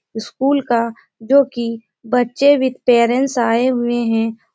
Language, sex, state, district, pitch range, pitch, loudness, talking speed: Hindi, female, Uttar Pradesh, Etah, 230-260 Hz, 240 Hz, -16 LUFS, 130 wpm